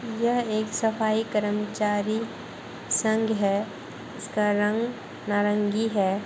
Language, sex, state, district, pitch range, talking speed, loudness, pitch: Hindi, female, Uttar Pradesh, Muzaffarnagar, 205-220 Hz, 95 wpm, -26 LUFS, 215 Hz